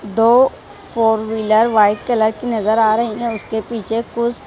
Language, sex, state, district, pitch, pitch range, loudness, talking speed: Hindi, female, Punjab, Kapurthala, 225 Hz, 220-235 Hz, -16 LUFS, 190 wpm